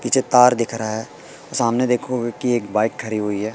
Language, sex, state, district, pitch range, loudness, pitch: Hindi, male, Madhya Pradesh, Katni, 105-125 Hz, -19 LUFS, 115 Hz